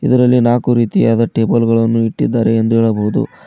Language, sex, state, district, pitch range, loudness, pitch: Kannada, male, Karnataka, Koppal, 115-120 Hz, -13 LUFS, 115 Hz